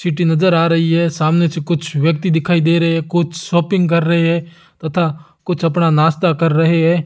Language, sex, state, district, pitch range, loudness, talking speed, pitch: Hindi, male, Rajasthan, Jaisalmer, 165-170 Hz, -15 LUFS, 210 wpm, 165 Hz